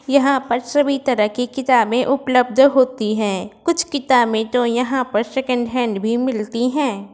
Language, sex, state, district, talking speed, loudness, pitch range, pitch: Hindi, female, Uttar Pradesh, Varanasi, 160 wpm, -18 LUFS, 230-270 Hz, 250 Hz